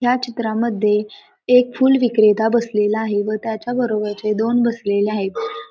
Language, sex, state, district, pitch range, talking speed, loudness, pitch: Marathi, female, Maharashtra, Pune, 210-245 Hz, 135 wpm, -18 LUFS, 225 Hz